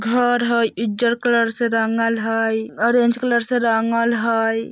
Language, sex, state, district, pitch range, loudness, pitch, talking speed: Bajjika, female, Bihar, Vaishali, 225-235 Hz, -18 LUFS, 230 Hz, 150 wpm